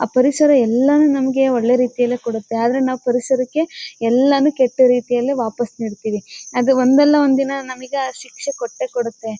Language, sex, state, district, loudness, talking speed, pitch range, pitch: Kannada, female, Karnataka, Mysore, -17 LUFS, 155 wpm, 240-275 Hz, 255 Hz